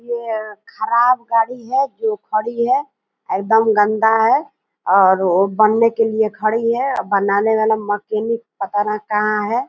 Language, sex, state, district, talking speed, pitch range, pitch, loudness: Angika, female, Bihar, Purnia, 140 wpm, 210-240 Hz, 220 Hz, -17 LUFS